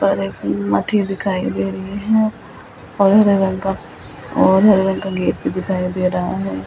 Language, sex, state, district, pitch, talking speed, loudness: Hindi, female, Delhi, New Delhi, 190 Hz, 200 wpm, -17 LUFS